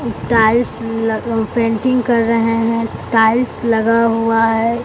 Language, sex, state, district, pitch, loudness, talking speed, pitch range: Hindi, male, Bihar, Katihar, 230 Hz, -15 LUFS, 135 wpm, 225-235 Hz